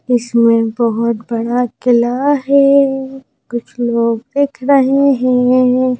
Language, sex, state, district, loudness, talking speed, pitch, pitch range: Hindi, female, Madhya Pradesh, Bhopal, -13 LUFS, 100 wpm, 250 Hz, 235-270 Hz